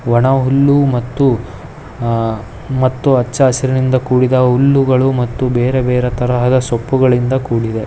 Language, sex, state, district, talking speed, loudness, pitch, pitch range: Kannada, male, Karnataka, Dharwad, 115 wpm, -14 LUFS, 125 Hz, 120-130 Hz